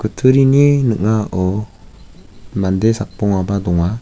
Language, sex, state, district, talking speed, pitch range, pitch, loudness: Garo, male, Meghalaya, West Garo Hills, 75 wpm, 95-115 Hz, 100 Hz, -15 LUFS